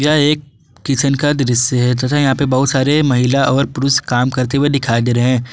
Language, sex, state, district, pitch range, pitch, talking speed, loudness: Hindi, male, Jharkhand, Garhwa, 125-140 Hz, 135 Hz, 225 wpm, -14 LUFS